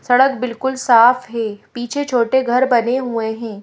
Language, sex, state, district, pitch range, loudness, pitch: Hindi, female, Madhya Pradesh, Bhopal, 230-260 Hz, -16 LUFS, 245 Hz